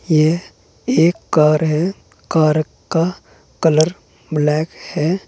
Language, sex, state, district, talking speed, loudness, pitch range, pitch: Hindi, male, Uttar Pradesh, Saharanpur, 100 wpm, -17 LUFS, 155-170 Hz, 160 Hz